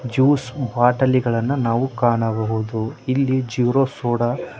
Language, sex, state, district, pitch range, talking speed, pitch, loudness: Kannada, male, Karnataka, Koppal, 120-130 Hz, 105 wpm, 125 Hz, -20 LUFS